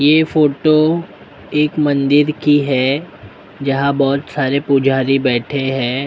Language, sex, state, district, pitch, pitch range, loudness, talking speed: Hindi, male, Maharashtra, Mumbai Suburban, 140 Hz, 135-150 Hz, -15 LUFS, 130 wpm